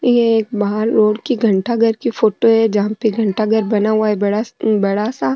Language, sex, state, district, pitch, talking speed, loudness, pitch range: Rajasthani, female, Rajasthan, Nagaur, 220 Hz, 200 wpm, -16 LUFS, 210-230 Hz